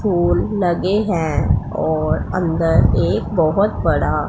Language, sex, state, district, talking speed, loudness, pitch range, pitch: Hindi, female, Punjab, Pathankot, 110 wpm, -18 LUFS, 160-185 Hz, 175 Hz